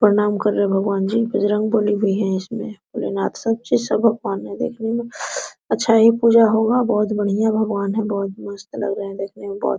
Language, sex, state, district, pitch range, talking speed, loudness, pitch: Hindi, female, Bihar, Araria, 200-225 Hz, 200 wpm, -19 LUFS, 210 Hz